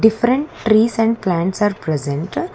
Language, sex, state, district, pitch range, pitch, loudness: English, female, Karnataka, Bangalore, 175-230 Hz, 215 Hz, -18 LUFS